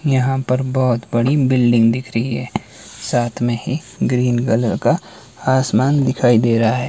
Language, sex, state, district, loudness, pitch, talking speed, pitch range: Hindi, male, Himachal Pradesh, Shimla, -17 LUFS, 125 Hz, 165 wpm, 120-130 Hz